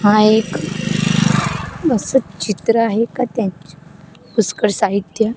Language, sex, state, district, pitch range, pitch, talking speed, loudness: Marathi, female, Maharashtra, Gondia, 170-220 Hz, 200 Hz, 110 wpm, -17 LUFS